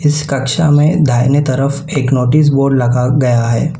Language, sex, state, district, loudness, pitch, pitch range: Hindi, male, Telangana, Hyderabad, -12 LUFS, 140 Hz, 130-150 Hz